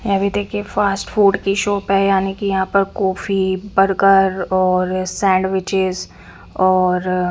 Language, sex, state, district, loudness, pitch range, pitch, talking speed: Hindi, female, Punjab, Fazilka, -17 LUFS, 185-195 Hz, 195 Hz, 140 wpm